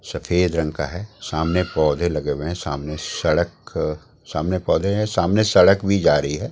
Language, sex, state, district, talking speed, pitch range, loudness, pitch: Hindi, male, Delhi, New Delhi, 185 wpm, 75-95 Hz, -20 LUFS, 85 Hz